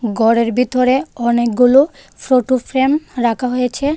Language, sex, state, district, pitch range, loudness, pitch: Bengali, female, Tripura, West Tripura, 235-265 Hz, -15 LUFS, 250 Hz